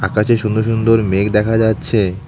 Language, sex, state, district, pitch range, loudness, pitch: Bengali, male, West Bengal, Cooch Behar, 105-115 Hz, -15 LUFS, 110 Hz